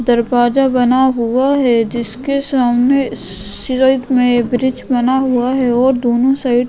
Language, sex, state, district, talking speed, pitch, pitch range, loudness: Hindi, female, Goa, North and South Goa, 145 wpm, 250 Hz, 240-265 Hz, -14 LUFS